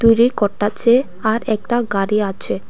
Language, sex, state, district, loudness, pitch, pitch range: Bengali, female, Tripura, West Tripura, -16 LUFS, 220 Hz, 200-235 Hz